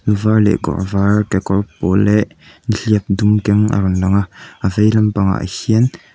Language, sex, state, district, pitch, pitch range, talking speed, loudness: Mizo, male, Mizoram, Aizawl, 105 Hz, 95-105 Hz, 185 wpm, -15 LUFS